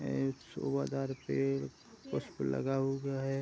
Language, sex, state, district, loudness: Hindi, male, Uttar Pradesh, Gorakhpur, -36 LUFS